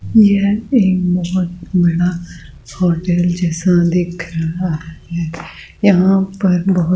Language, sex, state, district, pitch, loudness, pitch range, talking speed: Hindi, female, Rajasthan, Jaipur, 175 Hz, -15 LUFS, 170-185 Hz, 105 wpm